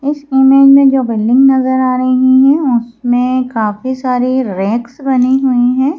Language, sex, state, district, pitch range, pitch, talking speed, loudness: Hindi, female, Madhya Pradesh, Bhopal, 245-265 Hz, 255 Hz, 160 wpm, -11 LUFS